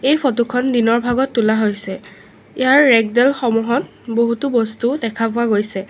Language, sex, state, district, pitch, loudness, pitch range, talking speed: Assamese, female, Assam, Sonitpur, 235 Hz, -16 LUFS, 220-255 Hz, 140 wpm